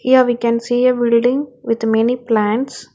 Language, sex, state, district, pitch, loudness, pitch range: English, female, Telangana, Hyderabad, 240 Hz, -16 LUFS, 230-255 Hz